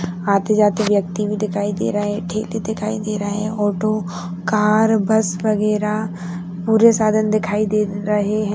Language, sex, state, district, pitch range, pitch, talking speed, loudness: Hindi, female, Bihar, Jahanabad, 200-215 Hz, 210 Hz, 170 wpm, -19 LUFS